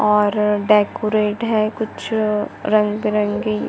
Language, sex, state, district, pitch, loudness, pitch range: Hindi, female, Chhattisgarh, Bastar, 210 Hz, -18 LUFS, 210-215 Hz